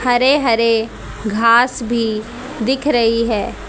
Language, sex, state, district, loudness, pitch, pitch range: Hindi, female, Haryana, Charkhi Dadri, -16 LUFS, 235 Hz, 225-250 Hz